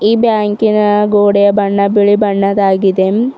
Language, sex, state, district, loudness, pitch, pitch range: Kannada, female, Karnataka, Bidar, -11 LUFS, 205 Hz, 200-210 Hz